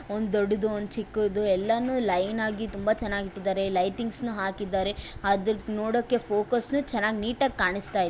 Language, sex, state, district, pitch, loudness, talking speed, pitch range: Kannada, female, Karnataka, Bellary, 210 Hz, -27 LUFS, 155 wpm, 200-225 Hz